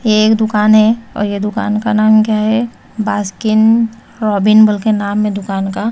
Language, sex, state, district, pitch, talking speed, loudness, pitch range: Hindi, female, Chhattisgarh, Raipur, 215 Hz, 180 wpm, -13 LUFS, 210-220 Hz